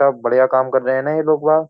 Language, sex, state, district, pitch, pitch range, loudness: Hindi, male, Uttar Pradesh, Jyotiba Phule Nagar, 140 Hz, 130-155 Hz, -16 LUFS